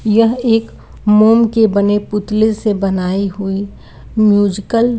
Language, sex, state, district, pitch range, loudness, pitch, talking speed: Hindi, female, Uttarakhand, Uttarkashi, 200-225 Hz, -14 LUFS, 210 Hz, 130 wpm